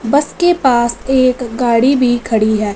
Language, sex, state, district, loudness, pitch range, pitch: Hindi, female, Punjab, Fazilka, -13 LUFS, 230-265 Hz, 245 Hz